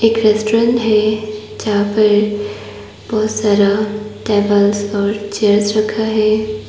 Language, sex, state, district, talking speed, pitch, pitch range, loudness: Hindi, female, Arunachal Pradesh, Papum Pare, 110 wpm, 210 Hz, 205-215 Hz, -15 LUFS